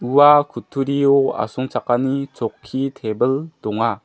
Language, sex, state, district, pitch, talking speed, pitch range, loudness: Garo, male, Meghalaya, West Garo Hills, 135 Hz, 90 wpm, 120-140 Hz, -19 LUFS